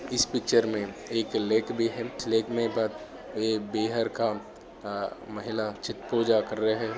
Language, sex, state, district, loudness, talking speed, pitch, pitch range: Hindi, male, Maharashtra, Solapur, -29 LUFS, 190 wpm, 110 Hz, 110-115 Hz